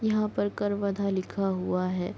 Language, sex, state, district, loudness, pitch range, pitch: Hindi, female, Chhattisgarh, Kabirdham, -29 LUFS, 185-205 Hz, 200 Hz